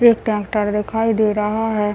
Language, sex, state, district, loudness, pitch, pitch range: Hindi, male, Bihar, Muzaffarpur, -19 LUFS, 215 Hz, 210-225 Hz